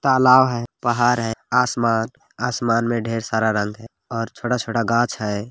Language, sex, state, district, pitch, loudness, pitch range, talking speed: Magahi, male, Bihar, Jamui, 115 Hz, -20 LUFS, 115-125 Hz, 165 wpm